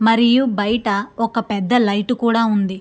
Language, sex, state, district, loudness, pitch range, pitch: Telugu, female, Andhra Pradesh, Krishna, -17 LUFS, 205-235 Hz, 225 Hz